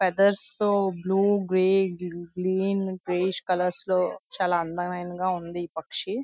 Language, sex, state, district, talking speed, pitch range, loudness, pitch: Telugu, female, Andhra Pradesh, Visakhapatnam, 135 wpm, 175-195 Hz, -26 LUFS, 185 Hz